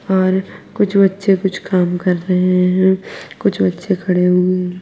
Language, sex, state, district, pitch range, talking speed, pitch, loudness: Hindi, female, Uttar Pradesh, Lalitpur, 180-190 Hz, 150 wpm, 185 Hz, -16 LUFS